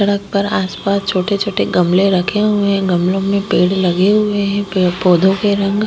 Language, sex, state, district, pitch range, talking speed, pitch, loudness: Hindi, female, Maharashtra, Chandrapur, 185-200 Hz, 215 wpm, 195 Hz, -15 LUFS